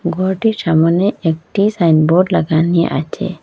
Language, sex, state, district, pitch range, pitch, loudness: Bengali, female, Assam, Hailakandi, 165-195 Hz, 175 Hz, -14 LUFS